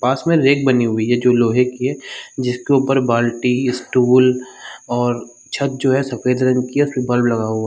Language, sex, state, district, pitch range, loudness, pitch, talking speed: Hindi, male, Jharkhand, Sahebganj, 120-130 Hz, -17 LUFS, 125 Hz, 205 wpm